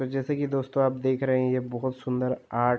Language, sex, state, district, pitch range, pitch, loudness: Hindi, male, Uttar Pradesh, Jalaun, 125-135 Hz, 130 Hz, -27 LUFS